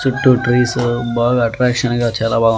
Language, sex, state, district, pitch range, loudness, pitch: Telugu, male, Andhra Pradesh, Annamaya, 115-125 Hz, -15 LUFS, 120 Hz